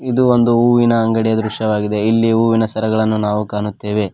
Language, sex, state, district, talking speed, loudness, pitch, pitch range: Kannada, male, Karnataka, Koppal, 145 wpm, -15 LUFS, 110 Hz, 105-115 Hz